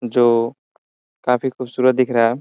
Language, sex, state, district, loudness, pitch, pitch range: Hindi, male, Bihar, Gopalganj, -18 LUFS, 125 Hz, 120-130 Hz